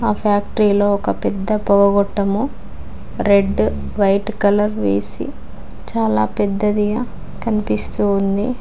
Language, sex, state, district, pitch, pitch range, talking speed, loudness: Telugu, female, Telangana, Mahabubabad, 200 Hz, 195-210 Hz, 90 wpm, -17 LUFS